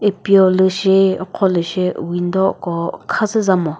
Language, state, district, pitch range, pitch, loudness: Chakhesang, Nagaland, Dimapur, 175-195 Hz, 190 Hz, -16 LUFS